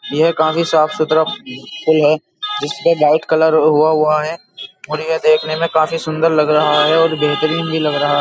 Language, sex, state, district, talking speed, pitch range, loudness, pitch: Hindi, male, Uttar Pradesh, Jyotiba Phule Nagar, 195 wpm, 155-160 Hz, -15 LUFS, 155 Hz